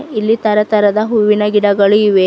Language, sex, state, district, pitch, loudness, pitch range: Kannada, female, Karnataka, Bidar, 210 Hz, -12 LUFS, 205-215 Hz